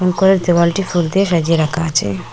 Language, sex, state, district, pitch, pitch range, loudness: Bengali, female, Assam, Hailakandi, 170 Hz, 160-185 Hz, -15 LUFS